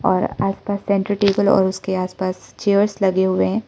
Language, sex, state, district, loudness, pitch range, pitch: Hindi, male, Arunachal Pradesh, Lower Dibang Valley, -19 LUFS, 190-200 Hz, 195 Hz